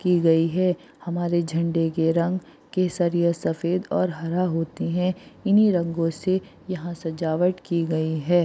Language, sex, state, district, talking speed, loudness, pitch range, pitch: Hindi, female, Maharashtra, Aurangabad, 150 wpm, -24 LUFS, 165-180 Hz, 170 Hz